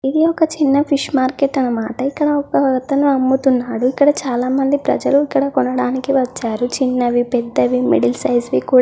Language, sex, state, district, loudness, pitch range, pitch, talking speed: Telugu, female, Andhra Pradesh, Krishna, -16 LUFS, 245-280 Hz, 265 Hz, 145 wpm